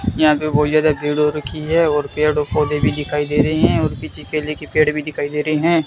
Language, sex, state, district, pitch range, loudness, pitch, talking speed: Hindi, male, Rajasthan, Bikaner, 150-155 Hz, -18 LUFS, 150 Hz, 275 wpm